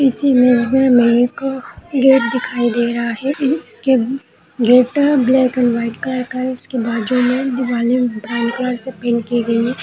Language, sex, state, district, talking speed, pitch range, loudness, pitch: Hindi, female, Bihar, Begusarai, 190 wpm, 240-265 Hz, -16 LUFS, 250 Hz